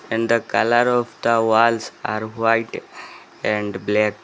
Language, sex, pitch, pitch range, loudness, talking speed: English, male, 115 Hz, 105-115 Hz, -20 LUFS, 140 wpm